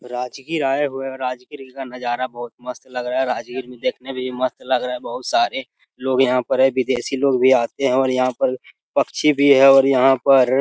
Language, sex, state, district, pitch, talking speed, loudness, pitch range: Hindi, male, Bihar, Jamui, 130 Hz, 230 wpm, -19 LUFS, 125-135 Hz